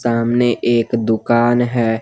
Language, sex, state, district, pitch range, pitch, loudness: Hindi, male, Jharkhand, Garhwa, 115-120 Hz, 120 Hz, -16 LUFS